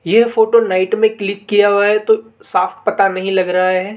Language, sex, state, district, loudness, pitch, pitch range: Hindi, male, Rajasthan, Jaipur, -14 LUFS, 205 Hz, 185-220 Hz